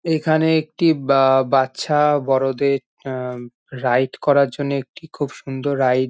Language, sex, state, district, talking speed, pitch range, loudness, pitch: Bengali, male, West Bengal, Jhargram, 150 wpm, 130-150 Hz, -19 LUFS, 135 Hz